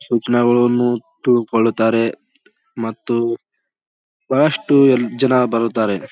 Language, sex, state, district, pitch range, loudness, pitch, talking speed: Kannada, male, Karnataka, Bijapur, 115-125 Hz, -17 LUFS, 120 Hz, 80 wpm